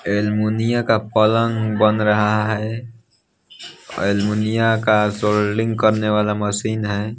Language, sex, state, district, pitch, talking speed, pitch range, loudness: Hindi, male, Odisha, Nuapada, 110 Hz, 110 wpm, 105-110 Hz, -18 LUFS